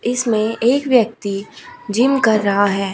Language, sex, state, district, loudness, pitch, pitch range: Hindi, female, Uttar Pradesh, Shamli, -17 LUFS, 225 Hz, 205-250 Hz